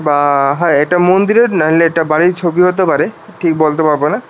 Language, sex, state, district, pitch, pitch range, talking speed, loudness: Bengali, male, Tripura, West Tripura, 165 Hz, 155-180 Hz, 180 wpm, -12 LUFS